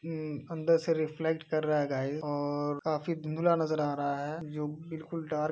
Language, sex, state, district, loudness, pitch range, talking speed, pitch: Hindi, male, Uttar Pradesh, Hamirpur, -32 LUFS, 145-160 Hz, 205 wpm, 155 Hz